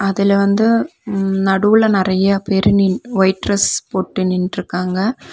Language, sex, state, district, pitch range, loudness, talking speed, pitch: Tamil, female, Tamil Nadu, Nilgiris, 190-205 Hz, -16 LUFS, 110 wpm, 195 Hz